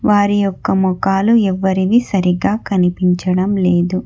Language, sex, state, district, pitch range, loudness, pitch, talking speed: Telugu, female, Telangana, Hyderabad, 180-205 Hz, -15 LUFS, 190 Hz, 105 wpm